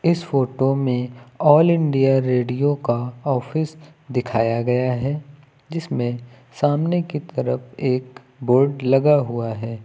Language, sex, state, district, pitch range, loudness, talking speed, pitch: Hindi, male, Uttar Pradesh, Lucknow, 125-145 Hz, -20 LUFS, 120 wpm, 130 Hz